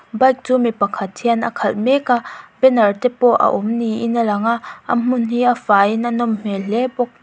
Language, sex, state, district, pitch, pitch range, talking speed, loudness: Mizo, female, Mizoram, Aizawl, 235 Hz, 220-245 Hz, 230 wpm, -17 LUFS